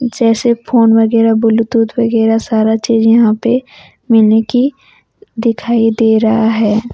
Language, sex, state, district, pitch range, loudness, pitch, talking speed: Hindi, female, Jharkhand, Deoghar, 225-235 Hz, -12 LUFS, 225 Hz, 130 wpm